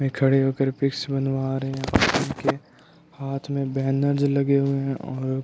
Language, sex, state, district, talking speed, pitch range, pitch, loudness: Hindi, male, Delhi, New Delhi, 175 wpm, 135-140 Hz, 135 Hz, -23 LUFS